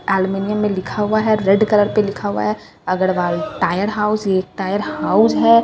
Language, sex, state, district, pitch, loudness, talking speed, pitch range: Hindi, female, Bihar, Katihar, 200 Hz, -18 LUFS, 215 wpm, 185-210 Hz